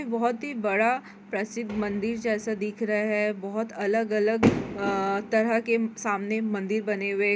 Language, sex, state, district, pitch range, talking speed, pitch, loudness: Hindi, female, Chhattisgarh, Korba, 205-225 Hz, 145 wpm, 215 Hz, -27 LUFS